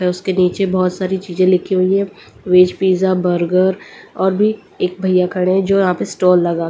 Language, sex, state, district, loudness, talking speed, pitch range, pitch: Hindi, female, Delhi, New Delhi, -15 LUFS, 205 wpm, 180-190 Hz, 185 Hz